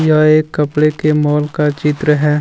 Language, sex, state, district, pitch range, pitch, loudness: Hindi, male, Jharkhand, Deoghar, 150-155 Hz, 150 Hz, -14 LUFS